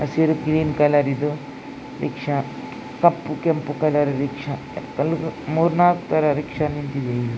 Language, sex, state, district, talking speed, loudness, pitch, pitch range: Kannada, female, Karnataka, Dakshina Kannada, 130 wpm, -21 LUFS, 150 Hz, 140-155 Hz